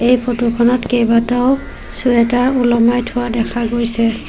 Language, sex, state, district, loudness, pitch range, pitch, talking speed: Assamese, female, Assam, Sonitpur, -15 LUFS, 235-245 Hz, 240 Hz, 125 wpm